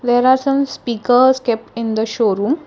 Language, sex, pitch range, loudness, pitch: English, female, 225-260 Hz, -16 LUFS, 245 Hz